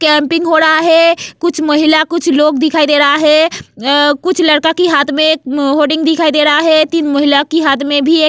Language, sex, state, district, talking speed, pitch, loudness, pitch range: Hindi, female, Goa, North and South Goa, 200 wpm, 310 Hz, -10 LUFS, 290-320 Hz